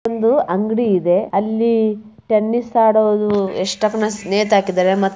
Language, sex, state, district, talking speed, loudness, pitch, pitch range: Kannada, male, Karnataka, Bijapur, 95 wpm, -17 LUFS, 215 Hz, 195-220 Hz